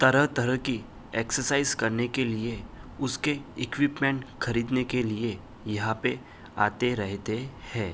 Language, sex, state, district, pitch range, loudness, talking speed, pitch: Hindi, male, Uttar Pradesh, Hamirpur, 110-130 Hz, -28 LUFS, 130 wpm, 120 Hz